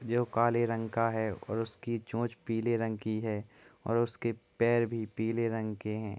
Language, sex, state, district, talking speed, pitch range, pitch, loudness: Hindi, male, Uttar Pradesh, Etah, 195 wpm, 110-115 Hz, 115 Hz, -33 LUFS